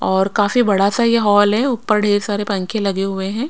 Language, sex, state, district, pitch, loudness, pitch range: Hindi, female, Bihar, Patna, 205 Hz, -16 LUFS, 195-220 Hz